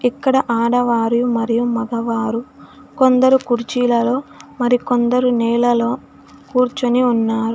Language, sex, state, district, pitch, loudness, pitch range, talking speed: Telugu, female, Telangana, Hyderabad, 245 Hz, -17 LUFS, 235-250 Hz, 85 wpm